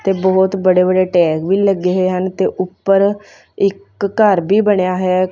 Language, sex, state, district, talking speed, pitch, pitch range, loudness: Punjabi, female, Punjab, Fazilka, 180 wpm, 185 Hz, 185-195 Hz, -15 LUFS